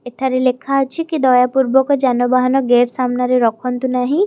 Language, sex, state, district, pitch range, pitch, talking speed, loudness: Odia, female, Odisha, Khordha, 250-265 Hz, 255 Hz, 155 wpm, -15 LUFS